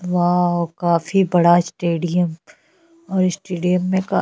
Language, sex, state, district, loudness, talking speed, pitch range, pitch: Bhojpuri, female, Uttar Pradesh, Ghazipur, -19 LUFS, 130 wpm, 175-190 Hz, 180 Hz